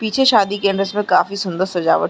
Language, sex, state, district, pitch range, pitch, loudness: Hindi, female, Chhattisgarh, Sarguja, 185-210 Hz, 200 Hz, -17 LUFS